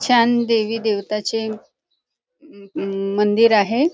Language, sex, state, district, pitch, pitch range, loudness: Marathi, female, Maharashtra, Nagpur, 220 Hz, 205-230 Hz, -19 LUFS